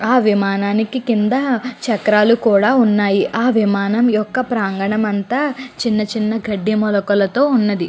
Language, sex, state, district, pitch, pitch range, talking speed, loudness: Telugu, female, Andhra Pradesh, Guntur, 215 Hz, 205-245 Hz, 120 wpm, -16 LUFS